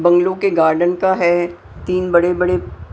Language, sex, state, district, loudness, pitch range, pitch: Hindi, female, Punjab, Pathankot, -16 LUFS, 170-180 Hz, 175 Hz